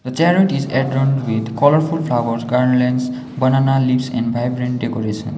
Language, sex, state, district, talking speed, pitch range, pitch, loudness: English, male, Sikkim, Gangtok, 145 wpm, 120-135 Hz, 125 Hz, -17 LUFS